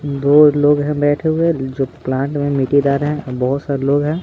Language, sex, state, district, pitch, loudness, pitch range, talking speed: Hindi, male, Bihar, Patna, 145 Hz, -16 LUFS, 135-150 Hz, 240 wpm